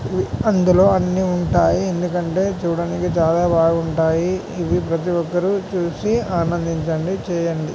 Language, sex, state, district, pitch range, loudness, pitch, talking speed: Telugu, male, Andhra Pradesh, Guntur, 165-185 Hz, -19 LUFS, 175 Hz, 100 wpm